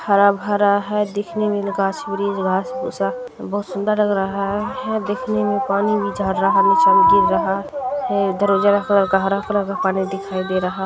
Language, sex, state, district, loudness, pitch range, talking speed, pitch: Hindi, female, Bihar, Bhagalpur, -19 LUFS, 195-210 Hz, 105 wpm, 200 Hz